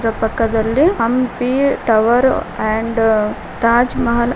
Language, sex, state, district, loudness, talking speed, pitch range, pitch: Kannada, female, Karnataka, Koppal, -16 LUFS, 80 wpm, 225-250 Hz, 230 Hz